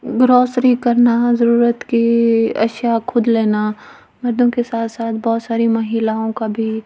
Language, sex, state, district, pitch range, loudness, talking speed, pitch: Hindi, female, Delhi, New Delhi, 225-240 Hz, -16 LUFS, 130 wpm, 230 Hz